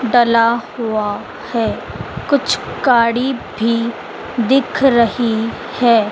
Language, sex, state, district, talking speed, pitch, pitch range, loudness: Hindi, female, Madhya Pradesh, Dhar, 90 wpm, 235 Hz, 230-245 Hz, -16 LUFS